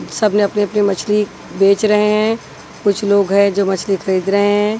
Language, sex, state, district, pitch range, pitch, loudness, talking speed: Hindi, female, Chhattisgarh, Raipur, 200-210 Hz, 205 Hz, -15 LUFS, 185 wpm